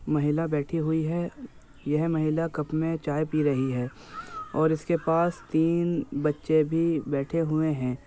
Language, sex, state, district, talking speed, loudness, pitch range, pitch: Hindi, male, Uttar Pradesh, Muzaffarnagar, 165 wpm, -27 LUFS, 150-165 Hz, 155 Hz